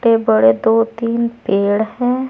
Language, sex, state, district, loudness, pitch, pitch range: Hindi, female, Uttar Pradesh, Saharanpur, -15 LUFS, 225 Hz, 205-235 Hz